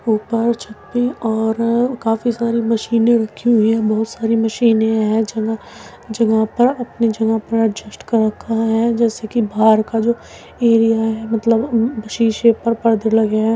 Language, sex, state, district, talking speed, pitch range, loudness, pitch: Hindi, female, Uttar Pradesh, Muzaffarnagar, 170 wpm, 220-230 Hz, -17 LUFS, 225 Hz